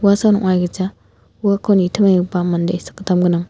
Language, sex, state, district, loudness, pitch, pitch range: Garo, female, Meghalaya, West Garo Hills, -17 LUFS, 185 Hz, 180-200 Hz